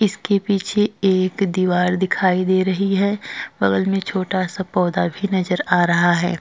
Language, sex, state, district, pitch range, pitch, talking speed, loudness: Hindi, male, Uttar Pradesh, Jyotiba Phule Nagar, 180-195 Hz, 185 Hz, 170 wpm, -19 LUFS